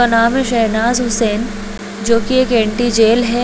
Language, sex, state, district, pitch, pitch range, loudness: Hindi, female, Chhattisgarh, Bilaspur, 230 Hz, 220-240 Hz, -14 LUFS